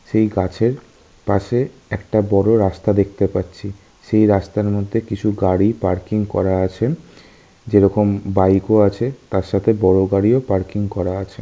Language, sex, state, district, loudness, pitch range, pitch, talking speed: Bengali, male, West Bengal, North 24 Parganas, -18 LUFS, 95-110 Hz, 100 Hz, 140 wpm